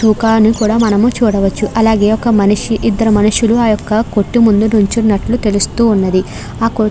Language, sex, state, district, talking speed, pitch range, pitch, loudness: Telugu, female, Andhra Pradesh, Krishna, 155 wpm, 210-225 Hz, 220 Hz, -12 LUFS